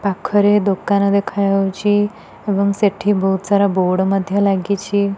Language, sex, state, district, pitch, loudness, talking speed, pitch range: Odia, female, Odisha, Nuapada, 200 Hz, -17 LUFS, 125 wpm, 195-205 Hz